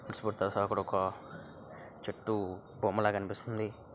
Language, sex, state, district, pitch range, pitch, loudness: Telugu, male, Andhra Pradesh, Srikakulam, 100-110 Hz, 105 Hz, -35 LUFS